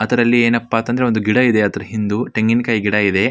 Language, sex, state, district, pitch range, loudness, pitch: Kannada, male, Karnataka, Mysore, 105-120 Hz, -16 LUFS, 115 Hz